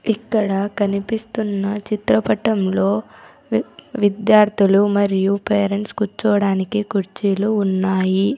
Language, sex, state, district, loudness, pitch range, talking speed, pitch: Telugu, female, Andhra Pradesh, Sri Satya Sai, -19 LUFS, 195-215 Hz, 70 wpm, 205 Hz